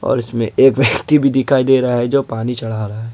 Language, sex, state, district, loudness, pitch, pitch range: Hindi, male, Jharkhand, Ranchi, -15 LUFS, 125 Hz, 115-135 Hz